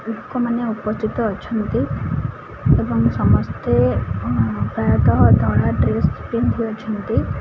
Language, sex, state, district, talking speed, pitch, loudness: Odia, female, Odisha, Khordha, 80 wpm, 120 Hz, -19 LUFS